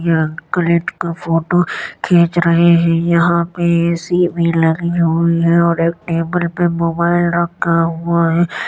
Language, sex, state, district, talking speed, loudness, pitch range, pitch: Hindi, male, Uttar Pradesh, Jyotiba Phule Nagar, 160 wpm, -15 LUFS, 165-170 Hz, 170 Hz